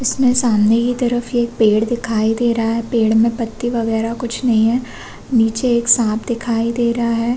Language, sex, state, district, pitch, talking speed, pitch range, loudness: Hindi, female, Chhattisgarh, Bastar, 235 Hz, 195 wpm, 225-240 Hz, -16 LUFS